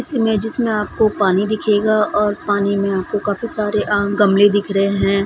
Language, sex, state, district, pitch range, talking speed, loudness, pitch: Hindi, female, Bihar, Samastipur, 200-215 Hz, 195 wpm, -17 LUFS, 205 Hz